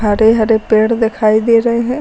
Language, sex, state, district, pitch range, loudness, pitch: Hindi, female, Uttar Pradesh, Lucknow, 220-230 Hz, -12 LUFS, 225 Hz